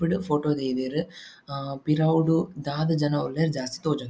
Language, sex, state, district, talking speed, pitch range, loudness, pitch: Tulu, male, Karnataka, Dakshina Kannada, 145 wpm, 140-160 Hz, -26 LUFS, 150 Hz